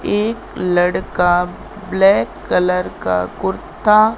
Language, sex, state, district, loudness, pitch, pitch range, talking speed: Hindi, female, Madhya Pradesh, Katni, -17 LUFS, 180 Hz, 180-210 Hz, 85 wpm